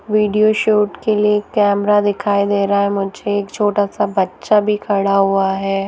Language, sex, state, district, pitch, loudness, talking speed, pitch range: Hindi, female, Bihar, Araria, 205 Hz, -16 LUFS, 185 wpm, 200-210 Hz